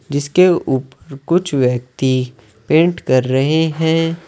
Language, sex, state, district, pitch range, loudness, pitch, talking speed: Hindi, male, Uttar Pradesh, Saharanpur, 130-165 Hz, -16 LUFS, 140 Hz, 110 wpm